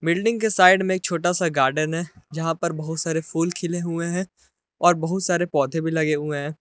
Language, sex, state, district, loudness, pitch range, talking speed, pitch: Hindi, male, Jharkhand, Palamu, -22 LUFS, 160-175 Hz, 225 wpm, 170 Hz